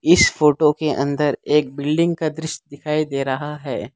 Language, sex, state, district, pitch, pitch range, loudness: Hindi, male, Gujarat, Valsad, 150 Hz, 140-155 Hz, -19 LUFS